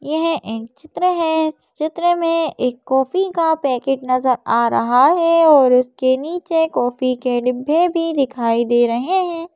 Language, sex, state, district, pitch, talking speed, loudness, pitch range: Hindi, female, Madhya Pradesh, Bhopal, 280 Hz, 155 wpm, -17 LUFS, 250-330 Hz